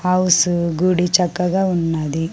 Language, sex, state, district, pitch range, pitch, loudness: Telugu, female, Andhra Pradesh, Sri Satya Sai, 165-185 Hz, 180 Hz, -17 LUFS